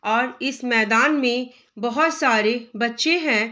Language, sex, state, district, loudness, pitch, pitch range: Hindi, female, Bihar, Saharsa, -20 LUFS, 245 Hz, 225-280 Hz